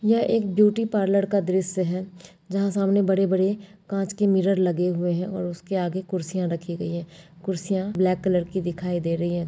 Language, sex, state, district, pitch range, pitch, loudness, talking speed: Hindi, female, Maharashtra, Dhule, 175-195 Hz, 190 Hz, -24 LUFS, 190 wpm